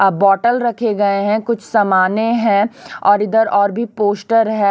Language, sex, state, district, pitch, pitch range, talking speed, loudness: Hindi, female, Chhattisgarh, Raipur, 215 Hz, 200-230 Hz, 180 wpm, -15 LUFS